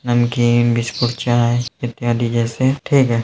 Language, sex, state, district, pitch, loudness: Hindi, male, Uttar Pradesh, Hamirpur, 120 Hz, -17 LUFS